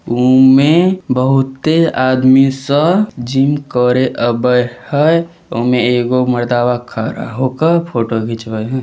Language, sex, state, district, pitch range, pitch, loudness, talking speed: Maithili, male, Bihar, Samastipur, 120-145 Hz, 130 Hz, -13 LUFS, 110 wpm